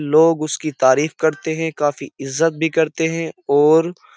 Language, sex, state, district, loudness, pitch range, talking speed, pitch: Hindi, male, Uttar Pradesh, Jyotiba Phule Nagar, -18 LUFS, 145-160 Hz, 170 wpm, 160 Hz